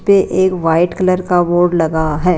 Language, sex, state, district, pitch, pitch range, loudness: Hindi, female, Rajasthan, Jaipur, 180 Hz, 165-185 Hz, -14 LUFS